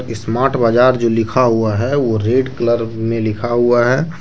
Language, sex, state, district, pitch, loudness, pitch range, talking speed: Hindi, male, Jharkhand, Deoghar, 120 Hz, -15 LUFS, 115-130 Hz, 200 wpm